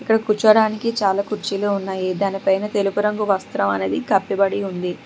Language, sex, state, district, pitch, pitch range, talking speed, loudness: Telugu, female, Telangana, Hyderabad, 200 Hz, 190-210 Hz, 140 wpm, -20 LUFS